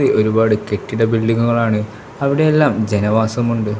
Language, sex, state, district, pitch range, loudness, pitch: Malayalam, male, Kerala, Kasaragod, 105-120 Hz, -16 LUFS, 110 Hz